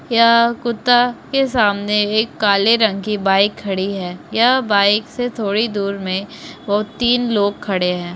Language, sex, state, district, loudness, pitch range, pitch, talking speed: Hindi, female, Chhattisgarh, Raigarh, -17 LUFS, 200-235 Hz, 210 Hz, 160 wpm